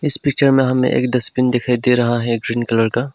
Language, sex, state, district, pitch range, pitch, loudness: Hindi, male, Arunachal Pradesh, Longding, 120-130 Hz, 125 Hz, -16 LUFS